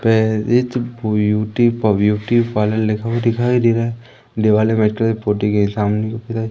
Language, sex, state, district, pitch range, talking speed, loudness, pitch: Hindi, male, Madhya Pradesh, Umaria, 105-115 Hz, 185 wpm, -17 LUFS, 110 Hz